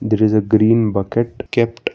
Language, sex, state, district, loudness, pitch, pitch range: English, male, Karnataka, Bangalore, -16 LUFS, 110 Hz, 110-115 Hz